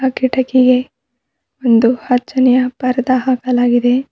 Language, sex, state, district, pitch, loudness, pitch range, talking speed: Kannada, female, Karnataka, Bidar, 255 Hz, -14 LUFS, 245-260 Hz, 75 wpm